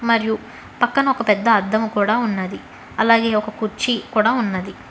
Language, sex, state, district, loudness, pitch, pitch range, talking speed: Telugu, female, Telangana, Hyderabad, -19 LUFS, 220 Hz, 210-235 Hz, 145 wpm